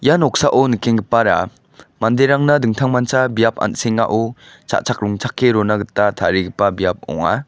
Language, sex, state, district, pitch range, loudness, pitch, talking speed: Garo, male, Meghalaya, West Garo Hills, 105-125 Hz, -16 LUFS, 115 Hz, 110 wpm